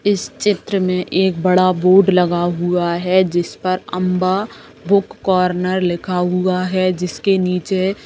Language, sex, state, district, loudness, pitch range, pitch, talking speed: Hindi, female, Bihar, Saran, -17 LUFS, 180-190 Hz, 185 Hz, 150 wpm